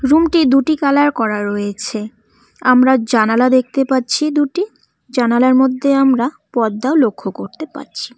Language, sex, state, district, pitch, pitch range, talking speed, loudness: Bengali, female, West Bengal, Cooch Behar, 260 Hz, 240-285 Hz, 125 wpm, -15 LUFS